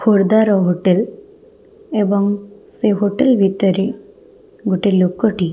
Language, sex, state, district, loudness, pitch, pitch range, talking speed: Odia, female, Odisha, Khordha, -16 LUFS, 205 Hz, 195-290 Hz, 110 wpm